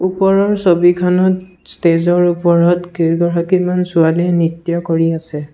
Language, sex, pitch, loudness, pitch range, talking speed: Assamese, male, 175 Hz, -14 LUFS, 170-180 Hz, 100 wpm